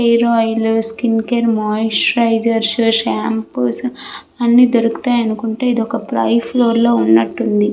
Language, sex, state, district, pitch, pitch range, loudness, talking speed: Telugu, female, Andhra Pradesh, Visakhapatnam, 230 Hz, 225-235 Hz, -15 LUFS, 115 wpm